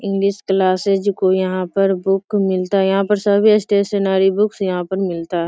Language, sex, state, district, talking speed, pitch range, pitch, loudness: Hindi, female, Bihar, Sitamarhi, 185 wpm, 185-200 Hz, 195 Hz, -17 LUFS